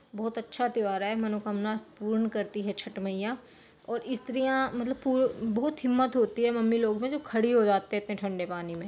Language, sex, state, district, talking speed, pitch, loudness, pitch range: Hindi, female, Uttar Pradesh, Jyotiba Phule Nagar, 210 wpm, 225 Hz, -29 LUFS, 210-245 Hz